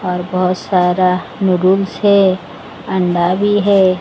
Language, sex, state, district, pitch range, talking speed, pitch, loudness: Hindi, female, Odisha, Sambalpur, 180-195 Hz, 120 wpm, 185 Hz, -14 LUFS